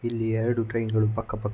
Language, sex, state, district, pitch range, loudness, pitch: Kannada, male, Karnataka, Mysore, 110-115 Hz, -26 LUFS, 115 Hz